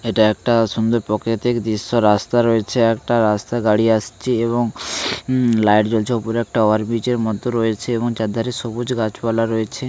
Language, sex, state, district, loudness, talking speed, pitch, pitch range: Bengali, male, West Bengal, Paschim Medinipur, -18 LUFS, 170 wpm, 115 Hz, 110-120 Hz